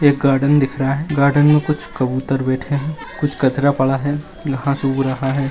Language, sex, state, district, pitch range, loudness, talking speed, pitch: Magahi, male, Bihar, Jahanabad, 135-145 Hz, -18 LUFS, 205 wpm, 140 Hz